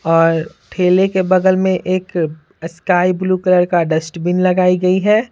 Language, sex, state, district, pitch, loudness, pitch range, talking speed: Hindi, female, Bihar, Patna, 180 Hz, -15 LUFS, 165-185 Hz, 160 wpm